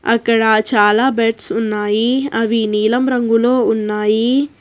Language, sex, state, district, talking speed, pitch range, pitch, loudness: Telugu, female, Telangana, Hyderabad, 115 wpm, 215-245 Hz, 225 Hz, -15 LUFS